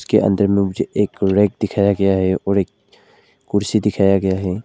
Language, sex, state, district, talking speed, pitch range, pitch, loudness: Hindi, male, Arunachal Pradesh, Lower Dibang Valley, 180 wpm, 95-100 Hz, 100 Hz, -17 LUFS